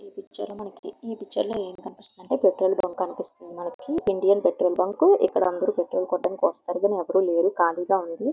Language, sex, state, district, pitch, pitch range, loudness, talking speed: Telugu, female, Andhra Pradesh, Visakhapatnam, 190 Hz, 180-210 Hz, -24 LUFS, 180 wpm